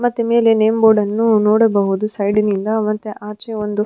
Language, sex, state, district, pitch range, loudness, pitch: Kannada, female, Karnataka, Dharwad, 210-225 Hz, -16 LUFS, 215 Hz